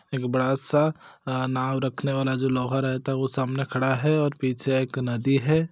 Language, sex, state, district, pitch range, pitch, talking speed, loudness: Hindi, male, Chhattisgarh, Bastar, 130-140 Hz, 135 Hz, 210 wpm, -25 LUFS